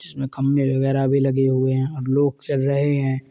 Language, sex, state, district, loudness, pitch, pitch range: Hindi, male, Uttar Pradesh, Muzaffarnagar, -20 LUFS, 135 Hz, 135-140 Hz